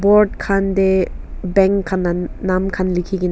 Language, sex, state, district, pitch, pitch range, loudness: Nagamese, female, Nagaland, Kohima, 190 Hz, 185-195 Hz, -18 LUFS